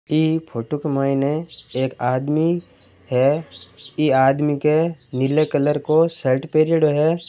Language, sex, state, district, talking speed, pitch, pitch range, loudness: Marwari, male, Rajasthan, Churu, 125 wpm, 150 Hz, 135-160 Hz, -20 LUFS